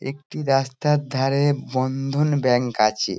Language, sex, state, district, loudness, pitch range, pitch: Bengali, male, West Bengal, Dakshin Dinajpur, -22 LUFS, 130-145 Hz, 135 Hz